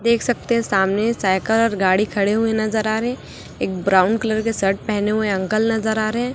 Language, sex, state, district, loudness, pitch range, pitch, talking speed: Hindi, male, Chhattisgarh, Raipur, -19 LUFS, 200-225 Hz, 220 Hz, 210 wpm